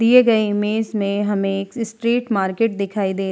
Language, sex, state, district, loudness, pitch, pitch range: Hindi, female, Uttar Pradesh, Hamirpur, -19 LUFS, 210 Hz, 200-225 Hz